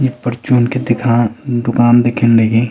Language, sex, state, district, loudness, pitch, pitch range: Garhwali, male, Uttarakhand, Uttarkashi, -13 LUFS, 120 Hz, 120-125 Hz